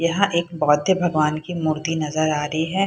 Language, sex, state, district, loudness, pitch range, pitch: Hindi, female, Bihar, Purnia, -21 LUFS, 155-175 Hz, 160 Hz